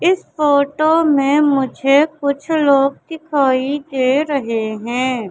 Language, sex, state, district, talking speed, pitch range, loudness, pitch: Hindi, female, Madhya Pradesh, Katni, 115 wpm, 265-300 Hz, -16 LUFS, 280 Hz